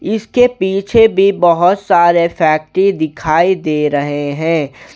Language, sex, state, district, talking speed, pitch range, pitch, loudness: Hindi, male, Jharkhand, Garhwa, 120 wpm, 155-195 Hz, 170 Hz, -13 LUFS